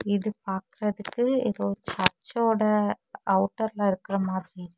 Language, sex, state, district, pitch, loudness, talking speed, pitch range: Tamil, female, Tamil Nadu, Kanyakumari, 200 Hz, -27 LUFS, 90 wpm, 185-215 Hz